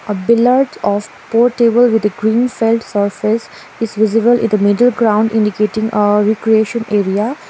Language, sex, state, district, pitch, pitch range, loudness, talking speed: English, female, Sikkim, Gangtok, 220 Hz, 210-235 Hz, -14 LUFS, 130 wpm